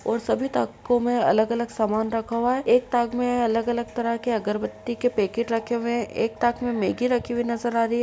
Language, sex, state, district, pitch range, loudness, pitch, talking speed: Hindi, female, Uttar Pradesh, Etah, 230-240 Hz, -24 LUFS, 235 Hz, 240 wpm